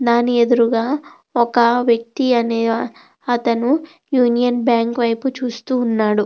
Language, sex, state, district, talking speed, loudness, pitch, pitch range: Telugu, female, Andhra Pradesh, Krishna, 105 wpm, -17 LUFS, 240 Hz, 235-250 Hz